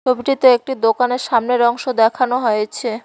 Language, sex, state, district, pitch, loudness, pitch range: Bengali, female, West Bengal, Cooch Behar, 245 Hz, -16 LUFS, 230-255 Hz